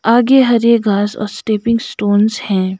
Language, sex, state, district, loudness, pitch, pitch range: Hindi, female, Sikkim, Gangtok, -14 LUFS, 220 Hz, 205-235 Hz